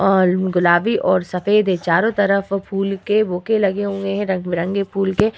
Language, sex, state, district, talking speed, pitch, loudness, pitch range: Hindi, female, Uttar Pradesh, Hamirpur, 190 wpm, 195 Hz, -18 LUFS, 185-205 Hz